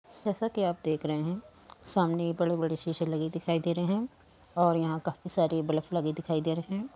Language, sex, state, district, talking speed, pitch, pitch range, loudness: Hindi, female, Uttar Pradesh, Muzaffarnagar, 205 wpm, 170 Hz, 160-180 Hz, -30 LUFS